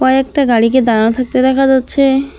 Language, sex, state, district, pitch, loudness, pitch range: Bengali, female, West Bengal, Alipurduar, 260 Hz, -12 LUFS, 245-270 Hz